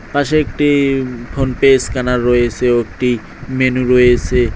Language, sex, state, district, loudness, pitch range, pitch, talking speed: Bengali, male, West Bengal, Cooch Behar, -14 LUFS, 120-135 Hz, 125 Hz, 130 wpm